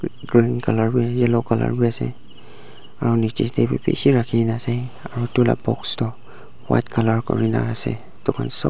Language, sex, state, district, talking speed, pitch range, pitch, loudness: Nagamese, male, Nagaland, Dimapur, 165 wpm, 115-120 Hz, 115 Hz, -19 LUFS